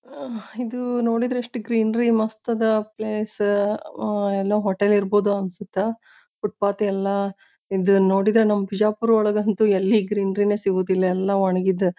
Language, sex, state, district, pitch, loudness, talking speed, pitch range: Kannada, female, Karnataka, Bijapur, 205 Hz, -22 LUFS, 130 wpm, 195-220 Hz